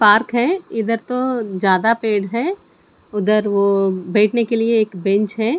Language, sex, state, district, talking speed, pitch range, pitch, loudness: Hindi, female, Chandigarh, Chandigarh, 160 wpm, 200-235 Hz, 220 Hz, -18 LUFS